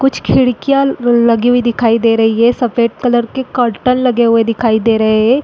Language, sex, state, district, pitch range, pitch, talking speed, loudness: Hindi, female, Uttarakhand, Uttarkashi, 230-250 Hz, 235 Hz, 200 wpm, -12 LUFS